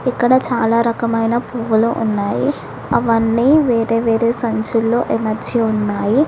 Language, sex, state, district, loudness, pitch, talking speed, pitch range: Telugu, female, Telangana, Hyderabad, -16 LUFS, 230 Hz, 105 wpm, 225-240 Hz